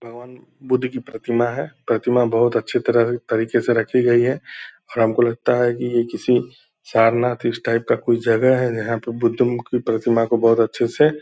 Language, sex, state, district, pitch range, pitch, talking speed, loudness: Hindi, male, Bihar, Purnia, 115-125 Hz, 120 Hz, 210 wpm, -19 LUFS